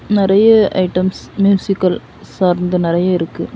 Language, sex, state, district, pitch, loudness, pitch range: Tamil, female, Tamil Nadu, Kanyakumari, 185 Hz, -14 LUFS, 180-200 Hz